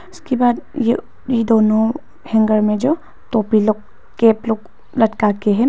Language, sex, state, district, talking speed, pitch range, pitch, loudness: Hindi, female, Arunachal Pradesh, Papum Pare, 160 wpm, 215-245 Hz, 225 Hz, -17 LUFS